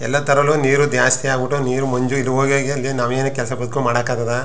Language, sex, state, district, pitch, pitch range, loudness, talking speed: Kannada, male, Karnataka, Chamarajanagar, 135 Hz, 125-140 Hz, -18 LUFS, 215 wpm